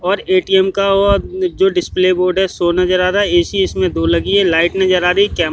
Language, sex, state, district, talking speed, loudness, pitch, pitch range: Hindi, male, Haryana, Jhajjar, 240 wpm, -14 LUFS, 185 Hz, 180-195 Hz